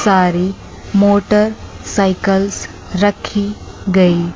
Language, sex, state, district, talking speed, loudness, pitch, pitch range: Hindi, female, Chandigarh, Chandigarh, 55 wpm, -15 LUFS, 195 Hz, 185-205 Hz